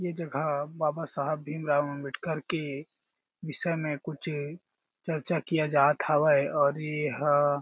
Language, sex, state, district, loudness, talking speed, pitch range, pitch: Chhattisgarhi, male, Chhattisgarh, Jashpur, -29 LUFS, 135 wpm, 145-160 Hz, 150 Hz